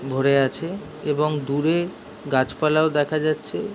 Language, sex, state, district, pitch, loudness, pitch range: Bengali, male, West Bengal, Jhargram, 150 Hz, -22 LUFS, 140-155 Hz